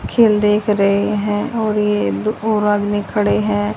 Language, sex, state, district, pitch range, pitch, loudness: Hindi, female, Haryana, Rohtak, 200-210 Hz, 210 Hz, -17 LUFS